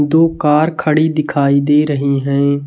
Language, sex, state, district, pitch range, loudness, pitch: Hindi, male, Chhattisgarh, Raipur, 140-155 Hz, -14 LUFS, 150 Hz